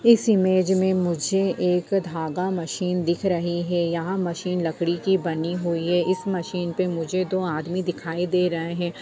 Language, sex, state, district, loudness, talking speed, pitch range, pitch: Hindi, female, Bihar, Darbhanga, -24 LUFS, 180 wpm, 170-185 Hz, 180 Hz